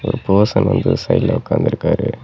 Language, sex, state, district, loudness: Tamil, male, Tamil Nadu, Namakkal, -16 LUFS